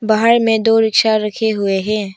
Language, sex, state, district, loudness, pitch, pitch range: Hindi, female, Arunachal Pradesh, Papum Pare, -14 LUFS, 220 Hz, 210-225 Hz